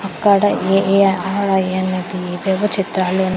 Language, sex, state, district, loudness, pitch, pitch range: Telugu, female, Andhra Pradesh, Sri Satya Sai, -17 LUFS, 190 Hz, 185-195 Hz